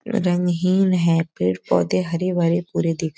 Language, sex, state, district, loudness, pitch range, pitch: Hindi, female, Uttar Pradesh, Etah, -20 LUFS, 160-180 Hz, 170 Hz